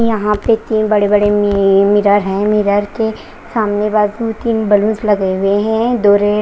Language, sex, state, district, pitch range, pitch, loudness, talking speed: Hindi, female, Chandigarh, Chandigarh, 205-220 Hz, 210 Hz, -14 LUFS, 170 wpm